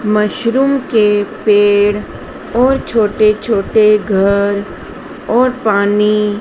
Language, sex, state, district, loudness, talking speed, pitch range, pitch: Hindi, female, Madhya Pradesh, Dhar, -13 LUFS, 85 wpm, 205-225 Hz, 210 Hz